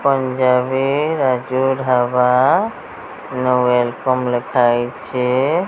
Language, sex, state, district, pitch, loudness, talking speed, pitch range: Odia, female, Odisha, Sambalpur, 125 Hz, -17 LUFS, 65 wpm, 125-130 Hz